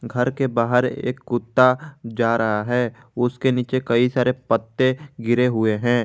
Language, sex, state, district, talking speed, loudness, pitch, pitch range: Hindi, male, Jharkhand, Garhwa, 160 wpm, -21 LUFS, 125 Hz, 115-130 Hz